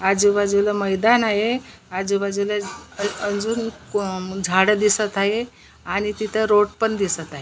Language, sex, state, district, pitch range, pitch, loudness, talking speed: Marathi, female, Maharashtra, Nagpur, 195-215 Hz, 205 Hz, -21 LUFS, 120 wpm